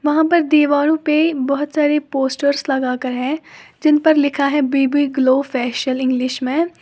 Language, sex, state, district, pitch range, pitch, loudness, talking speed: Hindi, female, Uttar Pradesh, Lalitpur, 265-300 Hz, 285 Hz, -17 LUFS, 165 wpm